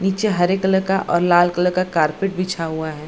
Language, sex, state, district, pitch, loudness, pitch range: Hindi, female, Bihar, Gaya, 180 Hz, -18 LUFS, 170-190 Hz